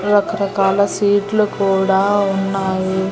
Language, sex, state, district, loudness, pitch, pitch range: Telugu, female, Andhra Pradesh, Annamaya, -16 LUFS, 200 Hz, 195-205 Hz